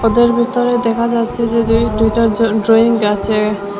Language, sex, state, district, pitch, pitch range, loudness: Bengali, female, Assam, Hailakandi, 230 Hz, 215-235 Hz, -14 LUFS